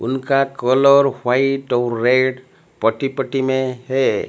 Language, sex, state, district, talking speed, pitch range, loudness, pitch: Hindi, male, Odisha, Malkangiri, 125 wpm, 125-135 Hz, -17 LUFS, 130 Hz